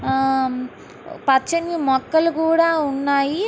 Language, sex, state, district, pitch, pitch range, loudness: Telugu, female, Andhra Pradesh, Guntur, 280 Hz, 265-330 Hz, -19 LUFS